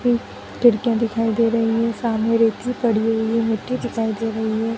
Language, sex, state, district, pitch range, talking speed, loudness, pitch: Hindi, female, Bihar, Sitamarhi, 225-235 Hz, 200 wpm, -20 LUFS, 230 Hz